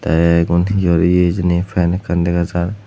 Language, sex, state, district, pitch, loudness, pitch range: Chakma, male, Tripura, West Tripura, 85 Hz, -15 LUFS, 85-90 Hz